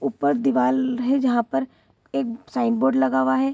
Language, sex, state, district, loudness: Hindi, female, Bihar, Saharsa, -22 LUFS